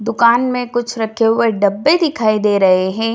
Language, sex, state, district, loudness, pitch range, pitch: Hindi, female, Bihar, Jamui, -15 LUFS, 210-240 Hz, 225 Hz